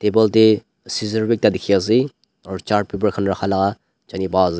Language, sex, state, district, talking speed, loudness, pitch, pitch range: Nagamese, male, Nagaland, Dimapur, 170 wpm, -18 LUFS, 105 Hz, 95-110 Hz